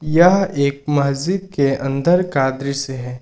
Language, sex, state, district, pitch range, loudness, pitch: Hindi, male, Jharkhand, Ranchi, 135-175 Hz, -18 LUFS, 140 Hz